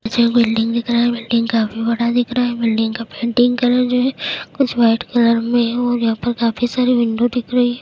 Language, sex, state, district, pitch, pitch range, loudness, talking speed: Hindi, female, Uttar Pradesh, Jyotiba Phule Nagar, 235 Hz, 230-245 Hz, -17 LUFS, 245 wpm